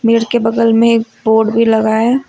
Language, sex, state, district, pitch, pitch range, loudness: Hindi, female, Uttar Pradesh, Lucknow, 230 Hz, 220-230 Hz, -12 LUFS